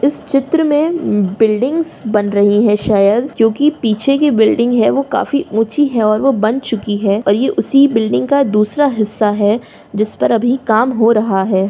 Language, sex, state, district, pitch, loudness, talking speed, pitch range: Hindi, female, Uttar Pradesh, Jyotiba Phule Nagar, 225 Hz, -14 LUFS, 185 wpm, 210-275 Hz